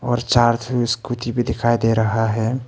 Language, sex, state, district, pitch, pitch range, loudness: Hindi, male, Arunachal Pradesh, Papum Pare, 120 Hz, 115-120 Hz, -19 LUFS